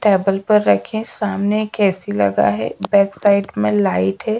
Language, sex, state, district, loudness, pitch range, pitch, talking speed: Hindi, female, Bihar, Patna, -17 LUFS, 145-210 Hz, 200 Hz, 180 wpm